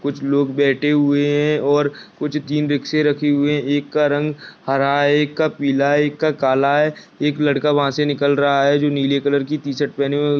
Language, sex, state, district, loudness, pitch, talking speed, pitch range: Hindi, male, Bihar, Saharsa, -18 LUFS, 145 Hz, 220 wpm, 140-150 Hz